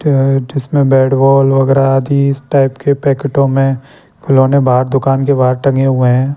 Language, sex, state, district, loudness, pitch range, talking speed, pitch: Hindi, male, Chandigarh, Chandigarh, -12 LUFS, 135-140 Hz, 170 wpm, 135 Hz